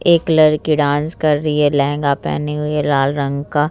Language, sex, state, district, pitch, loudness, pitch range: Hindi, female, Bihar, Vaishali, 150 Hz, -16 LUFS, 145-155 Hz